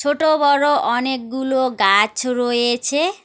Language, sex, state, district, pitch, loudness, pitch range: Bengali, female, West Bengal, Alipurduar, 260 Hz, -17 LUFS, 240-290 Hz